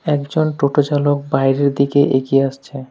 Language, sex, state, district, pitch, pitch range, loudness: Bengali, male, West Bengal, Alipurduar, 140 Hz, 135-145 Hz, -16 LUFS